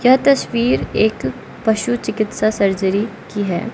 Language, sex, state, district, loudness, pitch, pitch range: Hindi, female, Arunachal Pradesh, Lower Dibang Valley, -18 LUFS, 215 Hz, 200-235 Hz